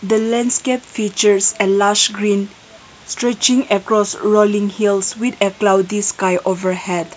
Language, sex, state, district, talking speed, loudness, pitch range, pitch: English, female, Nagaland, Kohima, 135 wpm, -16 LUFS, 195-220 Hz, 205 Hz